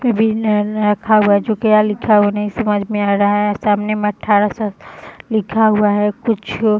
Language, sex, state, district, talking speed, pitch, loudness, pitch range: Hindi, female, Bihar, Madhepura, 175 wpm, 210 Hz, -15 LUFS, 205-215 Hz